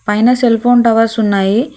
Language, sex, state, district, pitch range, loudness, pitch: Telugu, female, Telangana, Hyderabad, 215-245 Hz, -11 LUFS, 225 Hz